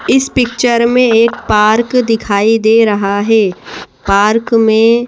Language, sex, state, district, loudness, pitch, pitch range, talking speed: Hindi, female, Madhya Pradesh, Bhopal, -11 LUFS, 225 Hz, 210-235 Hz, 130 wpm